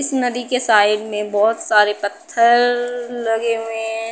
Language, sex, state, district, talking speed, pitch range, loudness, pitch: Hindi, female, Uttar Pradesh, Budaun, 160 wpm, 215-245 Hz, -17 LUFS, 225 Hz